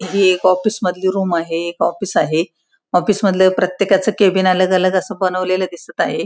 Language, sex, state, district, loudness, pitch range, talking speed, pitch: Marathi, female, Maharashtra, Pune, -16 LUFS, 180-195 Hz, 190 wpm, 185 Hz